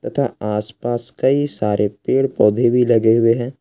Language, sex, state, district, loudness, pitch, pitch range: Hindi, male, Jharkhand, Ranchi, -17 LUFS, 115 Hz, 105-125 Hz